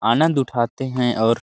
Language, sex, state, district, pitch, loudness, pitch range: Hindi, male, Chhattisgarh, Sarguja, 125 Hz, -20 LUFS, 120-135 Hz